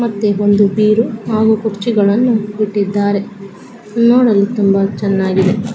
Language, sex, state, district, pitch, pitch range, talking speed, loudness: Kannada, female, Karnataka, Mysore, 210 Hz, 200-220 Hz, 105 wpm, -14 LUFS